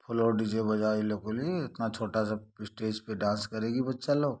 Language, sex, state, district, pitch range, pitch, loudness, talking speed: Hindi, male, Jharkhand, Sahebganj, 110-115 Hz, 110 Hz, -31 LUFS, 205 wpm